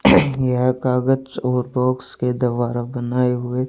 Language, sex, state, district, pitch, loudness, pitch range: Hindi, male, Haryana, Charkhi Dadri, 125 Hz, -20 LUFS, 125-130 Hz